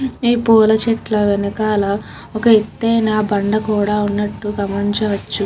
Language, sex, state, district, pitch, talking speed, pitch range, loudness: Telugu, female, Andhra Pradesh, Krishna, 215 Hz, 110 wpm, 205-225 Hz, -16 LUFS